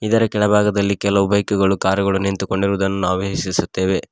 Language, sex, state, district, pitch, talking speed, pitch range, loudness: Kannada, male, Karnataka, Koppal, 100 Hz, 145 wpm, 95-100 Hz, -18 LUFS